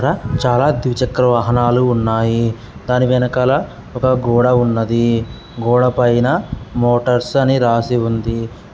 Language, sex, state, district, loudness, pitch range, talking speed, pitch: Telugu, male, Andhra Pradesh, Guntur, -15 LUFS, 115-125 Hz, 95 wpm, 120 Hz